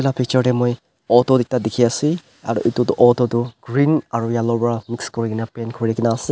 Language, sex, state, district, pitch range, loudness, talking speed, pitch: Nagamese, male, Nagaland, Dimapur, 115-125 Hz, -19 LUFS, 190 wpm, 120 Hz